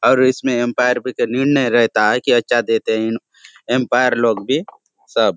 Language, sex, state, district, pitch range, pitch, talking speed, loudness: Hindi, male, Chhattisgarh, Bastar, 115-130 Hz, 120 Hz, 200 wpm, -17 LUFS